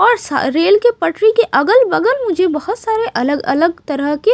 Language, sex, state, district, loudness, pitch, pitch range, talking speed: Hindi, female, Maharashtra, Mumbai Suburban, -14 LUFS, 380 Hz, 295-455 Hz, 165 wpm